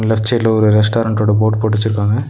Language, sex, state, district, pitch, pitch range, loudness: Tamil, male, Tamil Nadu, Nilgiris, 110 Hz, 105-110 Hz, -14 LUFS